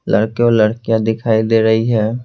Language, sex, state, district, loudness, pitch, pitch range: Hindi, male, Bihar, Patna, -15 LUFS, 110 Hz, 110-115 Hz